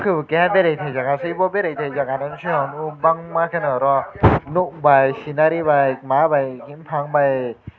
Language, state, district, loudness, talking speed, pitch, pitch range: Kokborok, Tripura, West Tripura, -19 LUFS, 145 wpm, 145 Hz, 135-165 Hz